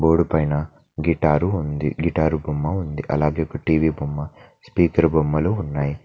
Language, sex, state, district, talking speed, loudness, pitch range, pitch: Telugu, male, Telangana, Mahabubabad, 140 wpm, -21 LUFS, 75-80 Hz, 75 Hz